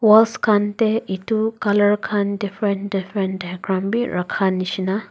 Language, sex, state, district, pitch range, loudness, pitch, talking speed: Nagamese, female, Nagaland, Dimapur, 190-215 Hz, -20 LUFS, 205 Hz, 130 wpm